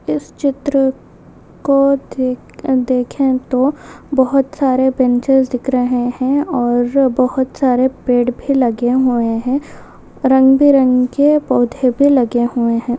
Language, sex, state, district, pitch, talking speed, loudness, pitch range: Hindi, female, Rajasthan, Nagaur, 260 Hz, 125 wpm, -15 LUFS, 245-270 Hz